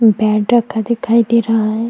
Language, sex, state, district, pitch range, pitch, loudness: Hindi, female, Chhattisgarh, Kabirdham, 215-235 Hz, 225 Hz, -14 LUFS